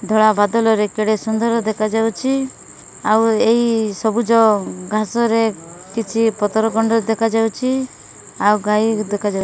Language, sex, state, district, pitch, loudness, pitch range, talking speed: Odia, female, Odisha, Malkangiri, 220 Hz, -17 LUFS, 210-225 Hz, 115 wpm